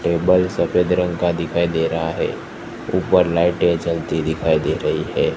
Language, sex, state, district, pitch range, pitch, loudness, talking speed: Hindi, male, Gujarat, Gandhinagar, 80-90 Hz, 85 Hz, -19 LUFS, 165 wpm